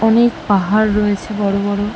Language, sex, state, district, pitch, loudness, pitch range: Bengali, female, West Bengal, Malda, 210 Hz, -16 LUFS, 200-215 Hz